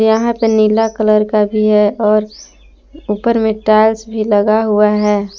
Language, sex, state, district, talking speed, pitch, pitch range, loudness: Hindi, female, Jharkhand, Palamu, 165 wpm, 215 Hz, 210-220 Hz, -13 LUFS